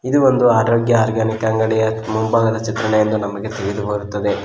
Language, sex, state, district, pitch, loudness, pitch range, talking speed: Kannada, male, Karnataka, Koppal, 110 Hz, -17 LUFS, 105-115 Hz, 120 wpm